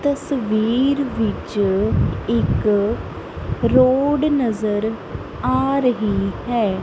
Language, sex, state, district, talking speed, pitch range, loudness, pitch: Punjabi, female, Punjab, Kapurthala, 70 wpm, 205-265 Hz, -19 LUFS, 220 Hz